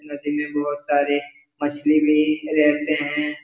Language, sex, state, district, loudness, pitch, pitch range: Hindi, male, Bihar, Jahanabad, -21 LUFS, 150 Hz, 145-150 Hz